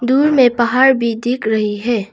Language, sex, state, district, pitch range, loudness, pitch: Hindi, female, Arunachal Pradesh, Longding, 225-260 Hz, -14 LUFS, 240 Hz